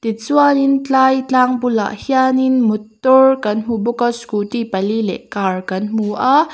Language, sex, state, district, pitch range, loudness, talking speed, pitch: Mizo, female, Mizoram, Aizawl, 215-265 Hz, -16 LUFS, 155 wpm, 240 Hz